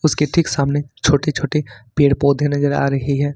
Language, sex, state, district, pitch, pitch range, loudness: Hindi, male, Jharkhand, Ranchi, 145 Hz, 140-150 Hz, -18 LUFS